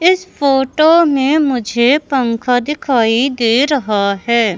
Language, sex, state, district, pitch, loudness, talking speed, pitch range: Hindi, male, Madhya Pradesh, Katni, 265 Hz, -13 LUFS, 120 wpm, 235-290 Hz